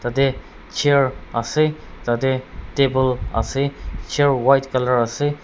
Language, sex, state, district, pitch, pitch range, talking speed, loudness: Nagamese, male, Nagaland, Dimapur, 130 Hz, 115-140 Hz, 120 wpm, -20 LUFS